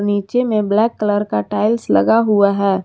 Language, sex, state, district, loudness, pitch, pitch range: Hindi, female, Jharkhand, Garhwa, -16 LUFS, 210 Hz, 200-225 Hz